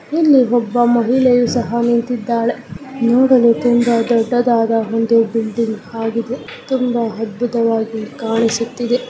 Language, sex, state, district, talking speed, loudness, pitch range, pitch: Kannada, female, Karnataka, Gulbarga, 90 wpm, -16 LUFS, 230-245 Hz, 235 Hz